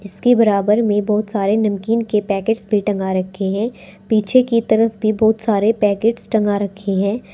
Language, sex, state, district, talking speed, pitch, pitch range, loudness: Hindi, female, Uttar Pradesh, Saharanpur, 180 wpm, 210 Hz, 200-220 Hz, -17 LUFS